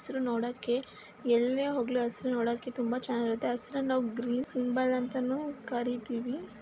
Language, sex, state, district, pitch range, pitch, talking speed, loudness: Kannada, male, Karnataka, Mysore, 240-255 Hz, 245 Hz, 125 wpm, -32 LUFS